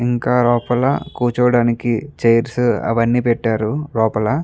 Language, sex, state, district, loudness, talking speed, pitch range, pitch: Telugu, male, Andhra Pradesh, Guntur, -17 LUFS, 110 wpm, 115-125 Hz, 120 Hz